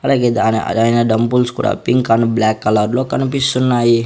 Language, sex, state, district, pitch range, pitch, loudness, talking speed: Telugu, male, Andhra Pradesh, Sri Satya Sai, 110-125 Hz, 120 Hz, -15 LUFS, 160 wpm